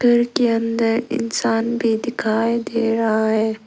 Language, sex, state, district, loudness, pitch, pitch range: Hindi, female, Arunachal Pradesh, Lower Dibang Valley, -19 LUFS, 230 Hz, 220-235 Hz